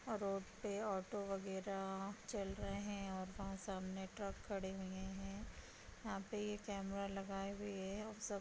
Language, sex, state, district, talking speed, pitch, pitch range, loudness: Hindi, female, Bihar, Vaishali, 165 wpm, 195 Hz, 195-205 Hz, -46 LUFS